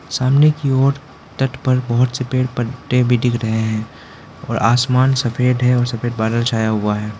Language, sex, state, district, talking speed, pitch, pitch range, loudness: Hindi, male, Arunachal Pradesh, Lower Dibang Valley, 190 wpm, 125 Hz, 115-130 Hz, -17 LUFS